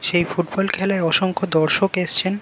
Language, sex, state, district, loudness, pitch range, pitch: Bengali, male, West Bengal, Jalpaiguri, -18 LUFS, 170-195 Hz, 185 Hz